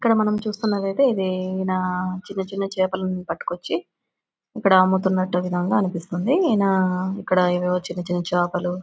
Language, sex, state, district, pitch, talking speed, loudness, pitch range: Telugu, female, Andhra Pradesh, Anantapur, 185 Hz, 135 wpm, -22 LUFS, 180-195 Hz